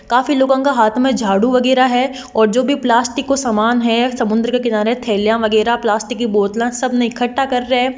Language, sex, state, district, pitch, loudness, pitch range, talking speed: Marwari, female, Rajasthan, Nagaur, 245 Hz, -15 LUFS, 225-255 Hz, 210 wpm